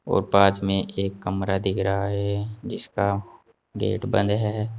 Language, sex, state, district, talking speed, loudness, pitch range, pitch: Hindi, male, Uttar Pradesh, Saharanpur, 150 wpm, -24 LUFS, 95-105 Hz, 100 Hz